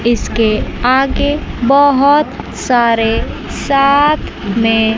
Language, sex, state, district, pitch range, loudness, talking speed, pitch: Hindi, female, Chandigarh, Chandigarh, 225-280 Hz, -13 LUFS, 70 wpm, 260 Hz